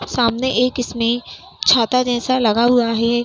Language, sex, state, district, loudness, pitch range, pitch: Hindi, female, Uttar Pradesh, Hamirpur, -17 LUFS, 235-250 Hz, 240 Hz